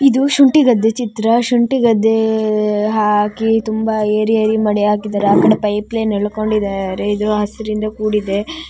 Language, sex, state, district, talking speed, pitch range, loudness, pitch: Kannada, female, Karnataka, Shimoga, 145 wpm, 210-225 Hz, -15 LUFS, 215 Hz